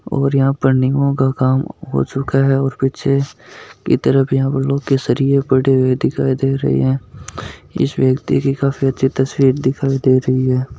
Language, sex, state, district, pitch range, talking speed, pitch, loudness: Hindi, male, Rajasthan, Nagaur, 130-135 Hz, 170 wpm, 135 Hz, -16 LUFS